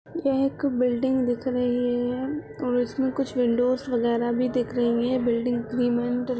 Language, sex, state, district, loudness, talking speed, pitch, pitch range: Hindi, female, Uttar Pradesh, Budaun, -25 LUFS, 150 wpm, 245 Hz, 240-260 Hz